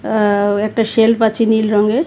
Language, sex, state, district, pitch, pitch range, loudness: Bengali, female, Tripura, West Tripura, 220 Hz, 210-225 Hz, -14 LUFS